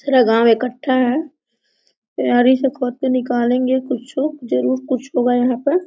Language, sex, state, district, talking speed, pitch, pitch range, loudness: Hindi, female, Jharkhand, Sahebganj, 155 wpm, 255 Hz, 245-270 Hz, -17 LUFS